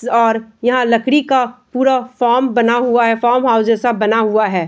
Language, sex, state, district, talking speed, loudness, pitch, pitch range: Hindi, female, Bihar, Bhagalpur, 180 wpm, -14 LUFS, 240 Hz, 225-250 Hz